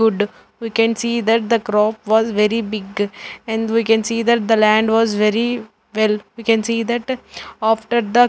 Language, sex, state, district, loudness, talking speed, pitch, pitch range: English, female, Punjab, Fazilka, -18 LUFS, 190 wpm, 225 Hz, 215-230 Hz